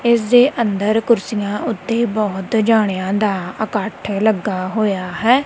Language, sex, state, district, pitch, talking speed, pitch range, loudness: Punjabi, female, Punjab, Kapurthala, 215 Hz, 130 wpm, 195-230 Hz, -17 LUFS